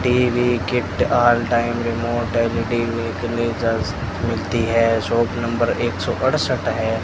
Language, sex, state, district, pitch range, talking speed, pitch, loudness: Hindi, male, Rajasthan, Bikaner, 115-120 Hz, 130 wpm, 115 Hz, -20 LUFS